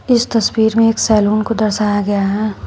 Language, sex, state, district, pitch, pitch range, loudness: Hindi, female, Uttar Pradesh, Shamli, 215 Hz, 205-225 Hz, -14 LUFS